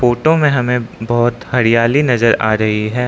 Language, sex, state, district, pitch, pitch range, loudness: Hindi, male, Arunachal Pradesh, Lower Dibang Valley, 120 Hz, 115-125 Hz, -14 LUFS